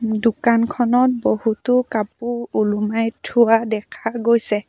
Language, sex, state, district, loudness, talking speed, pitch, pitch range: Assamese, female, Assam, Sonitpur, -19 LUFS, 90 wpm, 230 Hz, 220-240 Hz